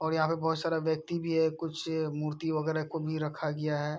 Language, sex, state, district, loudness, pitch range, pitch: Hindi, male, Bihar, Araria, -32 LUFS, 155-160 Hz, 160 Hz